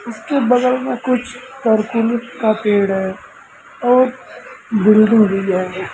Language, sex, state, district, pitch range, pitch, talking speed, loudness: Hindi, male, Uttar Pradesh, Lucknow, 210-250 Hz, 230 Hz, 110 wpm, -16 LUFS